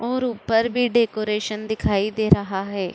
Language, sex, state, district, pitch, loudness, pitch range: Hindi, female, Uttar Pradesh, Budaun, 215 Hz, -22 LUFS, 200-235 Hz